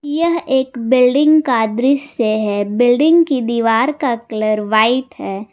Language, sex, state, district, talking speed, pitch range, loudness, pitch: Hindi, female, Jharkhand, Garhwa, 140 wpm, 220-285 Hz, -15 LUFS, 250 Hz